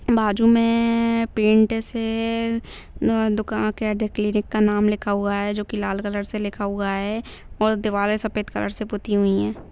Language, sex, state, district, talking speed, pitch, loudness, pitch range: Bhojpuri, female, Uttar Pradesh, Deoria, 175 wpm, 215 Hz, -22 LUFS, 205-225 Hz